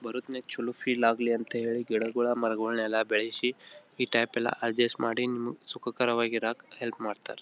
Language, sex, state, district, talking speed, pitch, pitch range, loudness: Kannada, male, Karnataka, Belgaum, 145 wpm, 120 Hz, 115-125 Hz, -30 LUFS